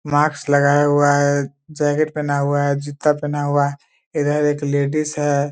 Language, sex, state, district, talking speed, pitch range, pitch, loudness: Hindi, male, Bihar, Muzaffarpur, 185 wpm, 145-150 Hz, 145 Hz, -18 LUFS